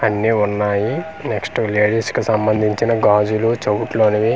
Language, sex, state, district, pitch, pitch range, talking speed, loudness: Telugu, male, Andhra Pradesh, Manyam, 110 Hz, 105-115 Hz, 150 wpm, -17 LUFS